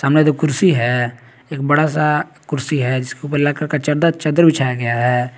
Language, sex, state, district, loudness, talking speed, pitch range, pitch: Hindi, male, Jharkhand, Garhwa, -17 LUFS, 200 wpm, 125-150 Hz, 145 Hz